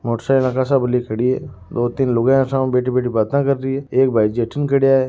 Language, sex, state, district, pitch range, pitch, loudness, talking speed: Marwari, male, Rajasthan, Nagaur, 120-135 Hz, 130 Hz, -18 LUFS, 200 wpm